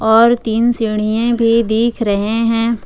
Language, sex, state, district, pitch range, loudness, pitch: Hindi, female, Jharkhand, Ranchi, 220-235 Hz, -14 LUFS, 225 Hz